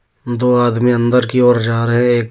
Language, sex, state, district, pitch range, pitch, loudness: Hindi, male, Jharkhand, Deoghar, 120-125 Hz, 120 Hz, -14 LUFS